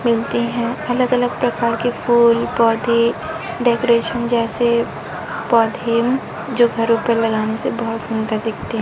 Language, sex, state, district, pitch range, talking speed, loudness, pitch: Hindi, female, Chhattisgarh, Raipur, 230-240 Hz, 130 wpm, -18 LUFS, 235 Hz